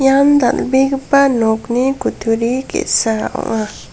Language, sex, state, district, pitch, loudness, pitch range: Garo, female, Meghalaya, South Garo Hills, 260 Hz, -15 LUFS, 225-275 Hz